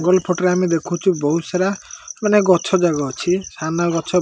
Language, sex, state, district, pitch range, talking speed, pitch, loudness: Odia, male, Odisha, Malkangiri, 165-185 Hz, 200 wpm, 180 Hz, -18 LUFS